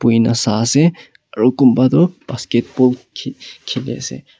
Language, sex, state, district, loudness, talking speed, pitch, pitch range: Nagamese, male, Nagaland, Kohima, -15 LUFS, 135 wpm, 130 Hz, 120-140 Hz